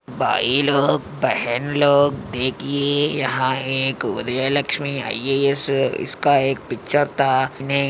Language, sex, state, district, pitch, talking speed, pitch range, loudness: Hindi, male, Maharashtra, Aurangabad, 135 Hz, 105 wpm, 130-140 Hz, -19 LUFS